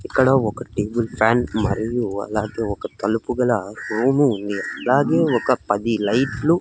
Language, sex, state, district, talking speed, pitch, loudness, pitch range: Telugu, male, Andhra Pradesh, Sri Satya Sai, 145 wpm, 115 Hz, -21 LUFS, 105-125 Hz